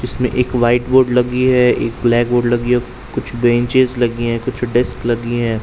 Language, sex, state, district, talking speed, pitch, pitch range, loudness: Hindi, male, Uttar Pradesh, Jalaun, 235 wpm, 120 Hz, 120-125 Hz, -16 LUFS